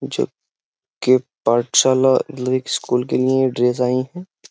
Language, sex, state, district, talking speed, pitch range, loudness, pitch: Hindi, male, Uttar Pradesh, Jyotiba Phule Nagar, 135 wpm, 125-130 Hz, -18 LUFS, 130 Hz